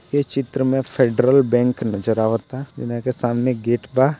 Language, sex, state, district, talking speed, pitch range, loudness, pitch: Bhojpuri, male, Bihar, Gopalganj, 170 wpm, 120-135 Hz, -20 LUFS, 125 Hz